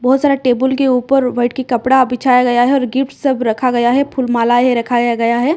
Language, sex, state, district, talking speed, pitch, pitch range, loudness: Hindi, female, Odisha, Malkangiri, 235 wpm, 250 Hz, 240-265 Hz, -14 LUFS